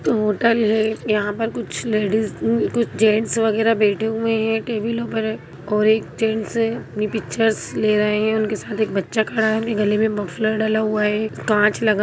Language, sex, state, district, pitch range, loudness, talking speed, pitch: Hindi, female, Bihar, Jamui, 210-225 Hz, -20 LUFS, 195 wpm, 220 Hz